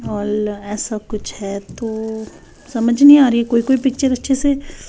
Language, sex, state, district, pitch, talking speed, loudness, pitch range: Hindi, female, Bihar, West Champaran, 235 Hz, 185 wpm, -16 LUFS, 215-270 Hz